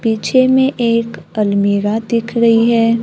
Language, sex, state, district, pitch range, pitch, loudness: Hindi, female, Maharashtra, Gondia, 220-235 Hz, 230 Hz, -14 LUFS